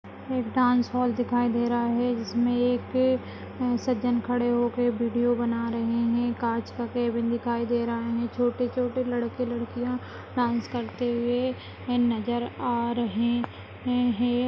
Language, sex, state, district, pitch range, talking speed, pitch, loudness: Hindi, female, Rajasthan, Nagaur, 235-245 Hz, 135 wpm, 240 Hz, -27 LUFS